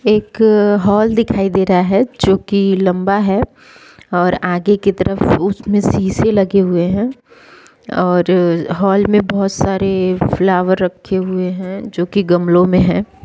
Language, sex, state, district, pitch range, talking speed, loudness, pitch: Hindi, female, Jharkhand, Sahebganj, 180-205 Hz, 155 wpm, -14 LUFS, 190 Hz